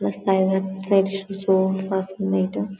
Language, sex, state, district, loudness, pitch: Telugu, female, Telangana, Karimnagar, -22 LUFS, 190 Hz